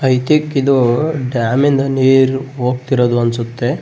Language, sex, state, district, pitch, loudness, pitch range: Kannada, male, Karnataka, Bellary, 130 Hz, -14 LUFS, 125-135 Hz